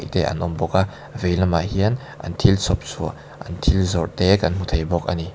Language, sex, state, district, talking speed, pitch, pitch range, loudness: Mizo, male, Mizoram, Aizawl, 235 wpm, 90 Hz, 85-100 Hz, -21 LUFS